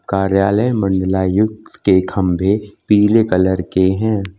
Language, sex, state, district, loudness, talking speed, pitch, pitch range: Hindi, male, Uttar Pradesh, Lucknow, -16 LUFS, 110 wpm, 95 Hz, 95-105 Hz